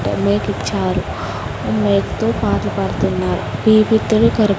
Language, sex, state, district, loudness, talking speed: Telugu, female, Andhra Pradesh, Sri Satya Sai, -17 LUFS, 90 wpm